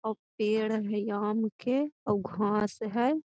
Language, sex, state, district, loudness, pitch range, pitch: Magahi, female, Bihar, Gaya, -30 LUFS, 210-225 Hz, 215 Hz